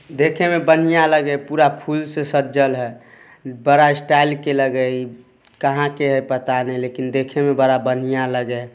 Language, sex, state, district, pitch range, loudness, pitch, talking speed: Hindi, male, Bihar, Samastipur, 130-145 Hz, -18 LUFS, 140 Hz, 190 wpm